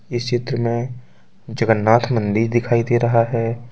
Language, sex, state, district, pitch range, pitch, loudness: Hindi, male, Jharkhand, Deoghar, 115-120 Hz, 120 Hz, -19 LUFS